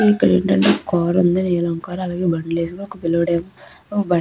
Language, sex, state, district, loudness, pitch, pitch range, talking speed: Telugu, female, Andhra Pradesh, Chittoor, -19 LUFS, 170 Hz, 165-180 Hz, 200 wpm